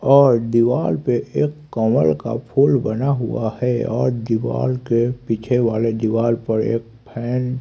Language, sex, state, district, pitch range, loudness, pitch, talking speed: Hindi, male, Haryana, Rohtak, 115-125 Hz, -19 LUFS, 120 Hz, 160 wpm